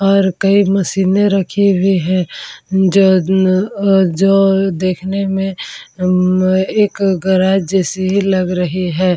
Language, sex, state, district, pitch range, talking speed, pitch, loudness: Hindi, female, Bihar, Vaishali, 185-195 Hz, 125 wpm, 190 Hz, -14 LUFS